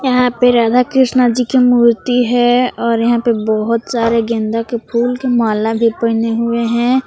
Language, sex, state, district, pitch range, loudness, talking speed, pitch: Hindi, female, Jharkhand, Palamu, 230-245 Hz, -14 LUFS, 185 wpm, 235 Hz